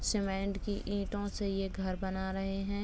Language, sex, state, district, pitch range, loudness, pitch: Hindi, male, Bihar, Purnia, 190-205 Hz, -36 LUFS, 195 Hz